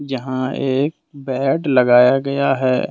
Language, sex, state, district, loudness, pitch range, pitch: Hindi, male, Jharkhand, Deoghar, -17 LUFS, 130-140 Hz, 135 Hz